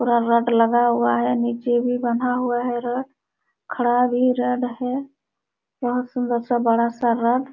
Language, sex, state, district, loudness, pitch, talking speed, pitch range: Hindi, female, Jharkhand, Sahebganj, -21 LUFS, 245 Hz, 175 wpm, 235-250 Hz